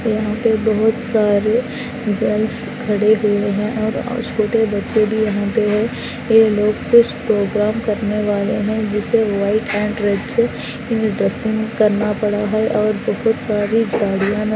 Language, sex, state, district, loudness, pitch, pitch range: Hindi, female, Andhra Pradesh, Anantapur, -17 LUFS, 215 Hz, 210-225 Hz